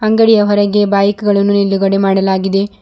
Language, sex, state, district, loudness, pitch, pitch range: Kannada, female, Karnataka, Bidar, -12 LUFS, 200 Hz, 195-205 Hz